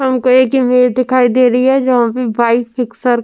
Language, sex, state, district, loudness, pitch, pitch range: Hindi, female, Uttar Pradesh, Jyotiba Phule Nagar, -12 LUFS, 250 Hz, 245-255 Hz